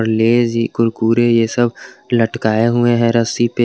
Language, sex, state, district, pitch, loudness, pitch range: Hindi, male, Jharkhand, Garhwa, 115 Hz, -15 LUFS, 115-120 Hz